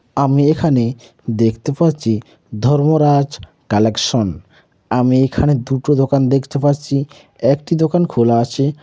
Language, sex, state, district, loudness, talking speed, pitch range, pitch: Bengali, male, West Bengal, Jhargram, -16 LUFS, 110 wpm, 120-145 Hz, 140 Hz